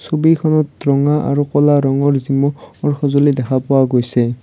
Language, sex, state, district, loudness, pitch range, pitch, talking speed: Assamese, male, Assam, Kamrup Metropolitan, -15 LUFS, 135-145 Hz, 140 Hz, 160 wpm